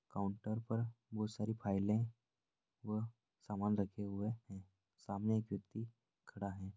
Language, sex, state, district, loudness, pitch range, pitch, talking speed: Hindi, male, Uttar Pradesh, Jalaun, -42 LUFS, 100-115 Hz, 105 Hz, 135 wpm